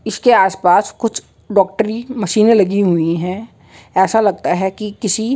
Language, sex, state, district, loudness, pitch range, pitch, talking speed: Hindi, female, Uttar Pradesh, Jalaun, -15 LUFS, 190-220 Hz, 205 Hz, 155 wpm